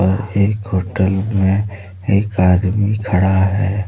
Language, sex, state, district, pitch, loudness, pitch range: Hindi, male, Jharkhand, Deoghar, 100 Hz, -16 LUFS, 95-100 Hz